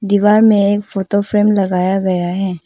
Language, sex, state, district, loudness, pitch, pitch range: Hindi, female, Arunachal Pradesh, Papum Pare, -14 LUFS, 200 Hz, 190-205 Hz